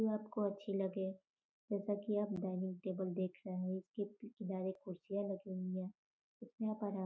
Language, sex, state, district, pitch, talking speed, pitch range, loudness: Hindi, female, Uttar Pradesh, Gorakhpur, 195 Hz, 205 wpm, 185-205 Hz, -42 LUFS